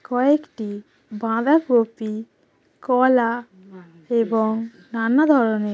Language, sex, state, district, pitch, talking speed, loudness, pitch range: Bengali, female, West Bengal, Paschim Medinipur, 230 Hz, 65 wpm, -20 LUFS, 215-250 Hz